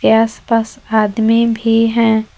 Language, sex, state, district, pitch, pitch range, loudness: Hindi, female, Jharkhand, Palamu, 225 Hz, 215-230 Hz, -14 LUFS